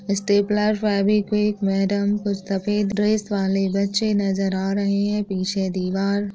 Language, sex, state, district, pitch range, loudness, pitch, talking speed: Hindi, female, Maharashtra, Sindhudurg, 195-210 Hz, -21 LUFS, 200 Hz, 130 wpm